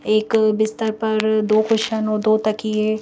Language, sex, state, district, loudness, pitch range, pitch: Hindi, female, Madhya Pradesh, Bhopal, -19 LUFS, 215-220 Hz, 215 Hz